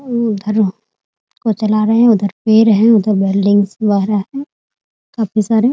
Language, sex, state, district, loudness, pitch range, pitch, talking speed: Hindi, female, Bihar, Muzaffarpur, -14 LUFS, 205-225 Hz, 215 Hz, 145 wpm